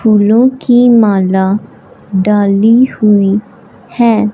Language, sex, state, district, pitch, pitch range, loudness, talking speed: Hindi, female, Punjab, Fazilka, 215 Hz, 205-235 Hz, -10 LUFS, 85 wpm